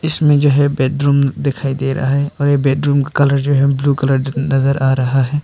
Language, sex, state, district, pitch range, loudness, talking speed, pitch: Hindi, male, Arunachal Pradesh, Papum Pare, 135-145 Hz, -15 LUFS, 230 wpm, 140 Hz